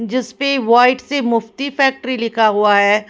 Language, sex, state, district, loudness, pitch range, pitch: Hindi, female, Punjab, Pathankot, -15 LUFS, 225-265 Hz, 245 Hz